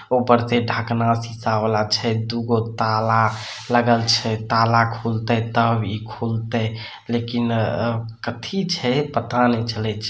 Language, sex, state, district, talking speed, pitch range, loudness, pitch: Maithili, male, Bihar, Samastipur, 145 wpm, 110-120 Hz, -21 LUFS, 115 Hz